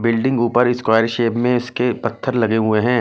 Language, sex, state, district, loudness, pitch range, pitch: Hindi, male, Delhi, New Delhi, -18 LUFS, 115-125 Hz, 120 Hz